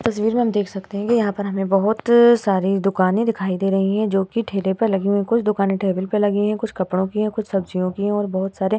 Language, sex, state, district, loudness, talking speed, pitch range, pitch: Hindi, female, Uttar Pradesh, Hamirpur, -20 LUFS, 280 wpm, 195-215 Hz, 200 Hz